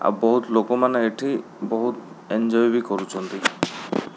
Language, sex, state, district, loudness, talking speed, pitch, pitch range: Odia, male, Odisha, Khordha, -23 LUFS, 115 wpm, 115 Hz, 105-120 Hz